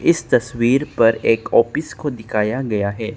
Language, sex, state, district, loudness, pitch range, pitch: Hindi, male, Arunachal Pradesh, Lower Dibang Valley, -18 LUFS, 110-130 Hz, 115 Hz